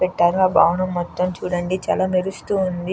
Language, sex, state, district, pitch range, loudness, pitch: Telugu, female, Andhra Pradesh, Krishna, 175-190 Hz, -20 LUFS, 185 Hz